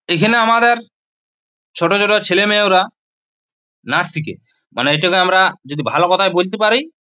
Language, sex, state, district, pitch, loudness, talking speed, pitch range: Bengali, male, West Bengal, Purulia, 190 Hz, -14 LUFS, 135 wpm, 180-215 Hz